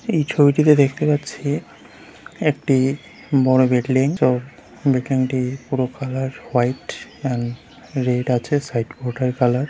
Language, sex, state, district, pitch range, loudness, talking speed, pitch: Bengali, male, West Bengal, Jalpaiguri, 125-145 Hz, -20 LUFS, 100 wpm, 130 Hz